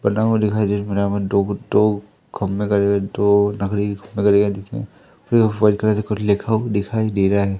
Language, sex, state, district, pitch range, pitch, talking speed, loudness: Hindi, male, Madhya Pradesh, Umaria, 100-105 Hz, 100 Hz, 105 wpm, -19 LUFS